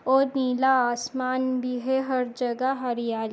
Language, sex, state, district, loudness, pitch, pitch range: Hindi, female, Goa, North and South Goa, -25 LUFS, 255 Hz, 245-265 Hz